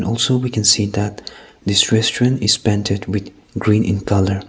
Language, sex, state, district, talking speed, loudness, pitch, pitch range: English, male, Nagaland, Kohima, 175 wpm, -17 LUFS, 105 Hz, 100-115 Hz